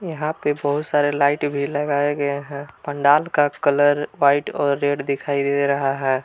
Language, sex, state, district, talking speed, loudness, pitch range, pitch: Hindi, male, Jharkhand, Palamu, 180 wpm, -20 LUFS, 140-145 Hz, 145 Hz